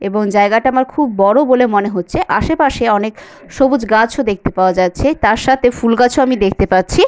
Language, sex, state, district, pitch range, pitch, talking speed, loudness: Bengali, female, West Bengal, Jalpaiguri, 200-265 Hz, 230 Hz, 210 wpm, -13 LUFS